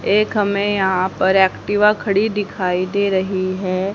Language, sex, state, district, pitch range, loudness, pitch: Hindi, female, Haryana, Jhajjar, 185-205 Hz, -18 LUFS, 195 Hz